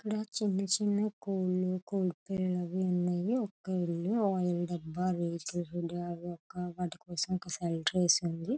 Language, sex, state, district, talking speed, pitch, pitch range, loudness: Telugu, female, Andhra Pradesh, Chittoor, 85 wpm, 180 Hz, 175-195 Hz, -33 LUFS